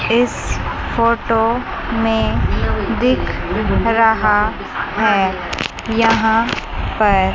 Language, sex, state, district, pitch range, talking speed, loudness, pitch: Hindi, female, Chandigarh, Chandigarh, 210-230 Hz, 65 wpm, -17 LUFS, 225 Hz